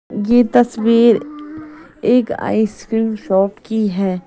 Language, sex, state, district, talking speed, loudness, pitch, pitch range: Hindi, female, Odisha, Sambalpur, 100 wpm, -16 LUFS, 225 Hz, 210-245 Hz